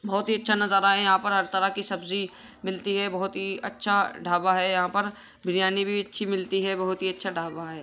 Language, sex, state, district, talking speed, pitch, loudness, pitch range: Hindi, male, Uttar Pradesh, Jyotiba Phule Nagar, 230 wpm, 195 Hz, -24 LUFS, 185-200 Hz